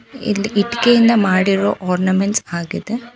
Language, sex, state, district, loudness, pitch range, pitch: Kannada, female, Karnataka, Bangalore, -16 LUFS, 185-235 Hz, 205 Hz